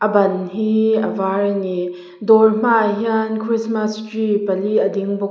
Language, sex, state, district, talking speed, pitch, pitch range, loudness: Mizo, female, Mizoram, Aizawl, 190 wpm, 215 Hz, 195-220 Hz, -18 LUFS